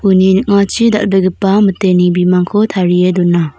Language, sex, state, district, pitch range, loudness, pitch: Garo, female, Meghalaya, North Garo Hills, 180-200 Hz, -11 LUFS, 190 Hz